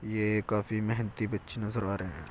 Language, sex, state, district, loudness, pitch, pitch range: Hindi, male, Uttar Pradesh, Jyotiba Phule Nagar, -32 LUFS, 105 Hz, 100-110 Hz